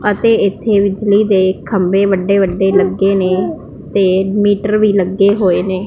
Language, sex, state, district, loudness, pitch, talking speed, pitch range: Punjabi, female, Punjab, Pathankot, -13 LUFS, 195 Hz, 155 wpm, 190-205 Hz